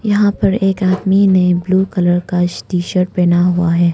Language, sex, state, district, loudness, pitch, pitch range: Hindi, female, Arunachal Pradesh, Longding, -14 LUFS, 180 Hz, 175-195 Hz